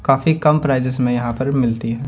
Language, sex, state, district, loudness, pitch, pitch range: Hindi, male, Punjab, Kapurthala, -17 LUFS, 130 Hz, 120-140 Hz